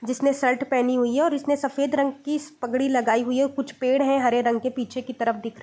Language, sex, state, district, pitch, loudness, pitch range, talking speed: Hindi, female, Bihar, East Champaran, 255 Hz, -23 LUFS, 245-275 Hz, 255 wpm